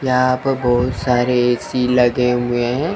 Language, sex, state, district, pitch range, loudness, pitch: Hindi, male, Chandigarh, Chandigarh, 120-130 Hz, -17 LUFS, 125 Hz